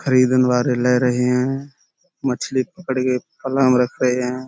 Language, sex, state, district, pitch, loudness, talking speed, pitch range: Hindi, male, Uttar Pradesh, Budaun, 130 Hz, -19 LUFS, 160 wpm, 125-135 Hz